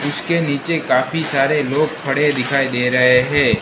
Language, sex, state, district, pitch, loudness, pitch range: Hindi, male, Gujarat, Gandhinagar, 145 Hz, -16 LUFS, 130-155 Hz